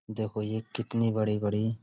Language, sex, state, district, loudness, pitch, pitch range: Hindi, male, Uttar Pradesh, Budaun, -30 LUFS, 110 Hz, 105-110 Hz